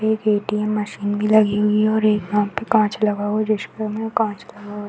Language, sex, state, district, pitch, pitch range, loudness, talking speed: Hindi, female, Uttar Pradesh, Varanasi, 210 Hz, 205-215 Hz, -20 LUFS, 245 wpm